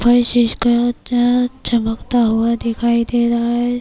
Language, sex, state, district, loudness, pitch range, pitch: Urdu, female, Bihar, Kishanganj, -16 LUFS, 235-245 Hz, 240 Hz